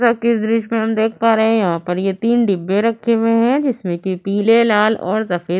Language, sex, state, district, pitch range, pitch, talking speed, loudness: Hindi, female, Uttar Pradesh, Budaun, 195-230 Hz, 220 Hz, 245 wpm, -16 LUFS